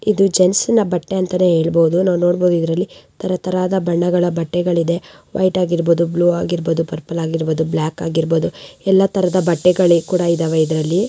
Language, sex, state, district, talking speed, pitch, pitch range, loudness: Kannada, female, Karnataka, Raichur, 140 wpm, 175 Hz, 165-185 Hz, -17 LUFS